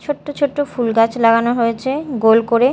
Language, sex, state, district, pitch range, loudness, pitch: Bengali, female, Odisha, Malkangiri, 230-285 Hz, -16 LUFS, 240 Hz